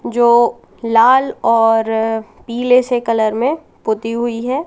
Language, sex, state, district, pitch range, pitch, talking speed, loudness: Hindi, female, Madhya Pradesh, Katni, 225-245 Hz, 235 Hz, 130 wpm, -15 LUFS